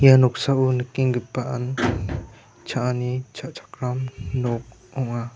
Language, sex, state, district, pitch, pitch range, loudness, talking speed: Garo, male, Meghalaya, West Garo Hills, 125 Hz, 120-130 Hz, -24 LUFS, 80 wpm